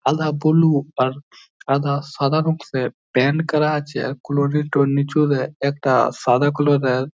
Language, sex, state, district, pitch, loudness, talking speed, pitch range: Bengali, male, West Bengal, Jhargram, 145 Hz, -19 LUFS, 145 wpm, 140-150 Hz